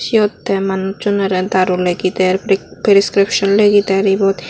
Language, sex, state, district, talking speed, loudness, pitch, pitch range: Chakma, female, Tripura, West Tripura, 135 wpm, -14 LUFS, 195 Hz, 185-200 Hz